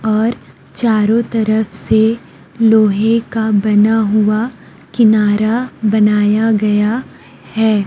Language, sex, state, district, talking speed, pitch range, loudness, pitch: Hindi, female, Chhattisgarh, Raipur, 90 wpm, 210-225 Hz, -14 LUFS, 220 Hz